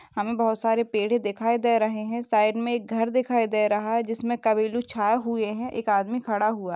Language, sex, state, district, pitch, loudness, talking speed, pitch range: Hindi, female, Goa, North and South Goa, 225 Hz, -25 LUFS, 215 wpm, 215-235 Hz